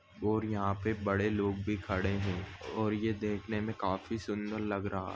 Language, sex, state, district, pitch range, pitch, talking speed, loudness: Hindi, male, Goa, North and South Goa, 100-110 Hz, 105 Hz, 200 wpm, -34 LUFS